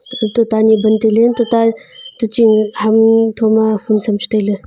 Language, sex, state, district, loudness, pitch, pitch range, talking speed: Wancho, female, Arunachal Pradesh, Longding, -13 LUFS, 220 Hz, 215-230 Hz, 180 wpm